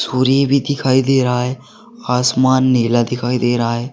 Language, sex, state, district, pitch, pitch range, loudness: Hindi, male, Uttar Pradesh, Saharanpur, 130 Hz, 125-135 Hz, -15 LUFS